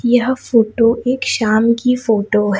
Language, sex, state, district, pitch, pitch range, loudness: Hindi, female, Chhattisgarh, Raipur, 230 Hz, 215-250 Hz, -15 LUFS